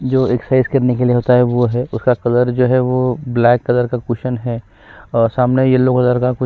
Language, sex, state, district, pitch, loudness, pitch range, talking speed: Hindi, male, Chhattisgarh, Kabirdham, 125 Hz, -15 LUFS, 120-130 Hz, 195 wpm